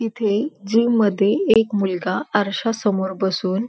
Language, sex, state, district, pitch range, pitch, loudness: Marathi, female, Maharashtra, Pune, 195-225 Hz, 210 Hz, -20 LUFS